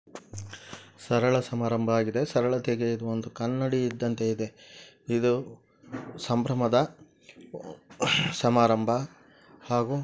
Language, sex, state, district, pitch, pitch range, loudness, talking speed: Kannada, male, Karnataka, Gulbarga, 120 Hz, 115-125 Hz, -27 LUFS, 65 wpm